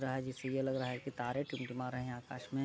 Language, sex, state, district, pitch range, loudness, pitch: Hindi, male, Bihar, Sitamarhi, 125-135 Hz, -40 LUFS, 130 Hz